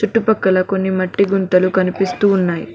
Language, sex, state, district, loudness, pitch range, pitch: Telugu, female, Telangana, Mahabubabad, -16 LUFS, 185-200 Hz, 190 Hz